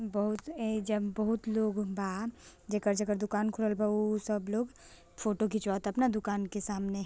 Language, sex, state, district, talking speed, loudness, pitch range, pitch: Bhojpuri, female, Bihar, Gopalganj, 170 wpm, -33 LUFS, 205-220 Hz, 210 Hz